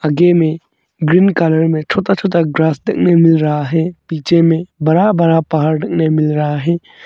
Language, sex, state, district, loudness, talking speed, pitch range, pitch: Hindi, male, Arunachal Pradesh, Longding, -13 LUFS, 185 wpm, 155-170 Hz, 165 Hz